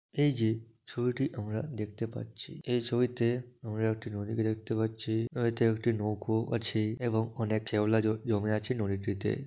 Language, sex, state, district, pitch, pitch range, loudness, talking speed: Bengali, male, West Bengal, Dakshin Dinajpur, 110 Hz, 110-120 Hz, -32 LUFS, 170 wpm